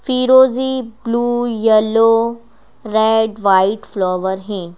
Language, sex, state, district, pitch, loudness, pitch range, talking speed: Hindi, female, Madhya Pradesh, Bhopal, 225 Hz, -15 LUFS, 205-240 Hz, 90 wpm